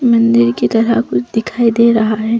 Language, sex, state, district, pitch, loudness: Hindi, female, Chhattisgarh, Bastar, 220 Hz, -13 LUFS